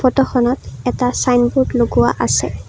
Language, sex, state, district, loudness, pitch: Assamese, female, Assam, Kamrup Metropolitan, -16 LUFS, 235 Hz